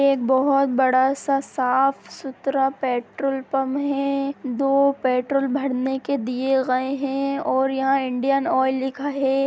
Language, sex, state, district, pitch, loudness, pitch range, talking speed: Hindi, female, Bihar, Sitamarhi, 270 Hz, -22 LUFS, 260-275 Hz, 135 wpm